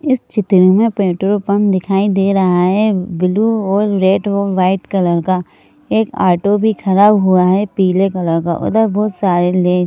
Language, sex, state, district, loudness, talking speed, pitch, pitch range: Hindi, female, Madhya Pradesh, Bhopal, -14 LUFS, 175 wpm, 195 Hz, 185-205 Hz